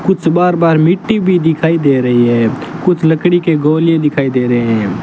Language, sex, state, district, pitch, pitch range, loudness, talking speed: Hindi, male, Rajasthan, Bikaner, 160 Hz, 125-175 Hz, -12 LUFS, 190 wpm